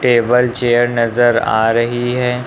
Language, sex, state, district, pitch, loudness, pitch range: Hindi, male, Uttar Pradesh, Lucknow, 120 Hz, -14 LUFS, 115-125 Hz